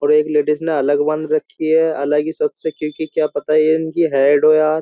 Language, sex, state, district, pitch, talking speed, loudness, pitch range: Hindi, male, Uttar Pradesh, Jyotiba Phule Nagar, 155 Hz, 250 wpm, -17 LUFS, 150-160 Hz